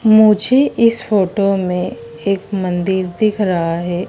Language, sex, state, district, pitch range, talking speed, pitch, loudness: Hindi, female, Madhya Pradesh, Dhar, 180-215 Hz, 130 wpm, 195 Hz, -15 LUFS